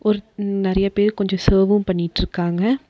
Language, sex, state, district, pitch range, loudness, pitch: Tamil, female, Tamil Nadu, Nilgiris, 190-210 Hz, -19 LUFS, 200 Hz